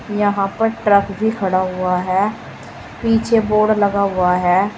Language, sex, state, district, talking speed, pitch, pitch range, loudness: Hindi, female, Uttar Pradesh, Saharanpur, 150 wpm, 200 Hz, 185-215 Hz, -17 LUFS